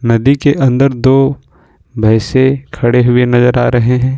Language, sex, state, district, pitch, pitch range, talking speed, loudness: Hindi, male, Jharkhand, Ranchi, 125 Hz, 120-135 Hz, 160 wpm, -11 LUFS